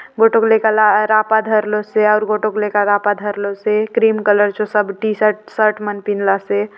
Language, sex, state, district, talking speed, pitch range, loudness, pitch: Halbi, female, Chhattisgarh, Bastar, 220 wpm, 205-215 Hz, -15 LUFS, 210 Hz